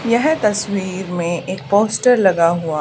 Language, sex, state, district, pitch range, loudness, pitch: Hindi, female, Haryana, Charkhi Dadri, 175-215 Hz, -17 LUFS, 190 Hz